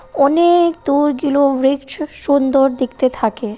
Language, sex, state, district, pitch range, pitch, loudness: Bengali, female, West Bengal, Purulia, 265-295 Hz, 280 Hz, -15 LUFS